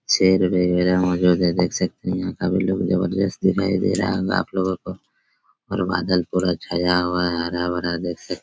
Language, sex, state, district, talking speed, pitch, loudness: Hindi, male, Chhattisgarh, Raigarh, 205 wpm, 90 Hz, -21 LUFS